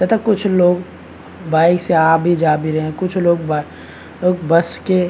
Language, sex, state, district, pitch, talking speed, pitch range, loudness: Hindi, male, Chhattisgarh, Bastar, 170 Hz, 200 wpm, 155-180 Hz, -16 LUFS